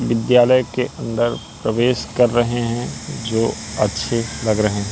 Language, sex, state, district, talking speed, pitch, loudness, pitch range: Hindi, male, Madhya Pradesh, Katni, 145 wpm, 120 Hz, -19 LUFS, 115-120 Hz